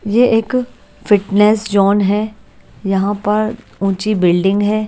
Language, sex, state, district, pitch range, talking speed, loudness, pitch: Hindi, female, Haryana, Jhajjar, 200-215 Hz, 125 wpm, -15 LUFS, 210 Hz